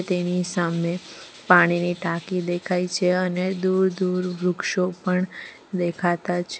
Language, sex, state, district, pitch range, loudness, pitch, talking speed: Gujarati, female, Gujarat, Valsad, 175-180 Hz, -23 LUFS, 180 Hz, 110 wpm